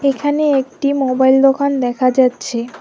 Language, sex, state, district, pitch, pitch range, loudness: Bengali, female, West Bengal, Alipurduar, 270 Hz, 255-280 Hz, -15 LUFS